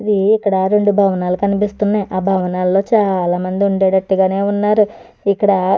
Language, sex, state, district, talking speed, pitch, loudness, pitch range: Telugu, female, Andhra Pradesh, Chittoor, 125 wpm, 200 Hz, -15 LUFS, 190-205 Hz